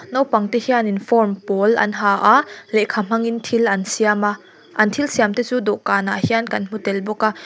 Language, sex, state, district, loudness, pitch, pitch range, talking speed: Mizo, female, Mizoram, Aizawl, -18 LUFS, 215 Hz, 205-235 Hz, 215 wpm